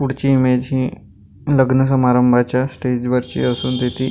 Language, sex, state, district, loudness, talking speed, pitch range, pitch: Marathi, male, Maharashtra, Gondia, -17 LUFS, 145 wpm, 125-130 Hz, 125 Hz